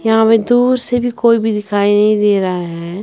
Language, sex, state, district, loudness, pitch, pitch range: Hindi, female, Bihar, West Champaran, -13 LUFS, 215 Hz, 205-235 Hz